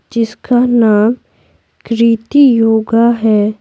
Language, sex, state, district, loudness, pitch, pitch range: Hindi, female, Bihar, Patna, -11 LUFS, 230 Hz, 220-240 Hz